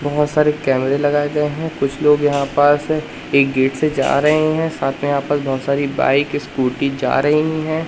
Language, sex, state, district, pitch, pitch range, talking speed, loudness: Hindi, male, Madhya Pradesh, Katni, 145 Hz, 140-150 Hz, 215 wpm, -17 LUFS